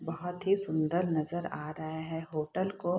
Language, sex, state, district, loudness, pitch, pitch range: Hindi, female, Bihar, Saharsa, -33 LUFS, 165 Hz, 160-175 Hz